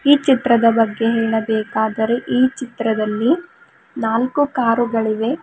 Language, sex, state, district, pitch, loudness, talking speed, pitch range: Kannada, female, Karnataka, Bidar, 235 Hz, -18 LUFS, 90 wpm, 225-265 Hz